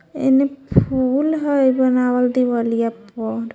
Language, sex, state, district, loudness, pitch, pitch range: Magahi, female, Jharkhand, Palamu, -18 LUFS, 255 Hz, 230-275 Hz